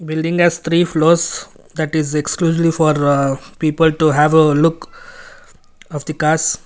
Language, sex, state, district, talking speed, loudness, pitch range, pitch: English, male, Karnataka, Bangalore, 145 wpm, -15 LUFS, 155-165 Hz, 160 Hz